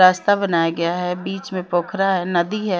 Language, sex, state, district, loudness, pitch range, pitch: Hindi, female, Chandigarh, Chandigarh, -20 LUFS, 175-195 Hz, 185 Hz